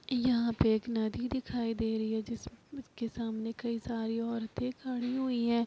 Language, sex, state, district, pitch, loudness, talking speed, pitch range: Hindi, female, Uttar Pradesh, Etah, 235 Hz, -34 LUFS, 170 wpm, 225-245 Hz